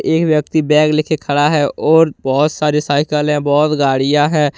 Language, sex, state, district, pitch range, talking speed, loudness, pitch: Hindi, male, Jharkhand, Deoghar, 145-155 Hz, 195 wpm, -14 LUFS, 150 Hz